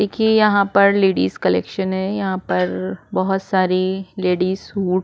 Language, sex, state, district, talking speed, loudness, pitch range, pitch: Hindi, female, Uttar Pradesh, Jyotiba Phule Nagar, 155 wpm, -18 LUFS, 180-200 Hz, 190 Hz